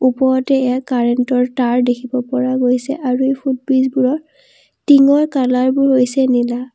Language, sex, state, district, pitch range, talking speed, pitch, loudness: Assamese, female, Assam, Kamrup Metropolitan, 250-270 Hz, 150 wpm, 255 Hz, -15 LUFS